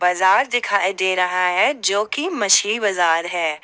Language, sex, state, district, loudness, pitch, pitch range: Hindi, female, Jharkhand, Ranchi, -18 LUFS, 190 Hz, 180-210 Hz